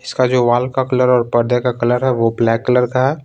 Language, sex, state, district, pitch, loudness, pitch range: Hindi, male, Bihar, Patna, 125 Hz, -15 LUFS, 120-130 Hz